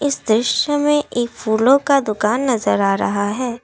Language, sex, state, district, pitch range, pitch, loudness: Hindi, female, Assam, Kamrup Metropolitan, 215-275 Hz, 240 Hz, -17 LUFS